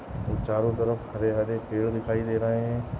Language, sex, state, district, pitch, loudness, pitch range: Hindi, male, Goa, North and South Goa, 115 Hz, -27 LUFS, 110-115 Hz